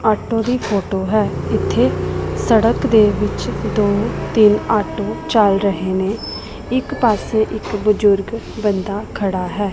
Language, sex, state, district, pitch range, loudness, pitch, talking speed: Punjabi, female, Punjab, Pathankot, 200-220 Hz, -17 LUFS, 210 Hz, 130 wpm